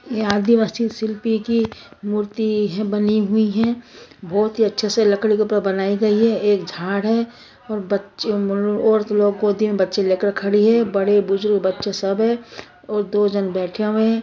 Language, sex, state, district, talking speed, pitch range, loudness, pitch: Hindi, female, Chhattisgarh, Bastar, 200 wpm, 200-220 Hz, -19 LUFS, 210 Hz